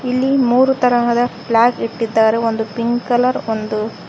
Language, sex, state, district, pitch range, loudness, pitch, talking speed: Kannada, female, Karnataka, Koppal, 225-250 Hz, -16 LUFS, 235 Hz, 130 wpm